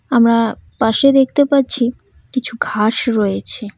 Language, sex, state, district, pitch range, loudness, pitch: Bengali, female, West Bengal, Cooch Behar, 220-265 Hz, -15 LUFS, 235 Hz